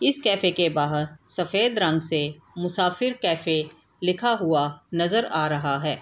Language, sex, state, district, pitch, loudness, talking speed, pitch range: Hindi, female, Bihar, Sitamarhi, 170 Hz, -23 LUFS, 150 wpm, 150-185 Hz